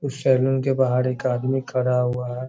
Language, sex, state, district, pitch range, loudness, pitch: Hindi, male, Bihar, Darbhanga, 125-130 Hz, -22 LUFS, 130 Hz